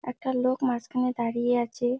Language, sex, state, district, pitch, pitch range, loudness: Bengali, female, West Bengal, Jalpaiguri, 250 Hz, 240-255 Hz, -27 LUFS